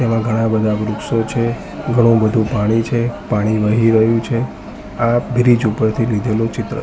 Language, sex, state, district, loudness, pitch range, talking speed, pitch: Gujarati, male, Gujarat, Gandhinagar, -16 LUFS, 110-120 Hz, 160 wpm, 115 Hz